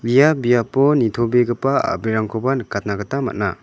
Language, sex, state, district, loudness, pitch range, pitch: Garo, male, Meghalaya, West Garo Hills, -18 LUFS, 110-135 Hz, 120 Hz